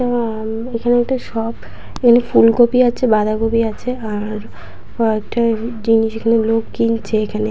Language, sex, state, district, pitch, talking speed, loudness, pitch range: Bengali, female, West Bengal, Purulia, 230 Hz, 130 wpm, -17 LUFS, 220-240 Hz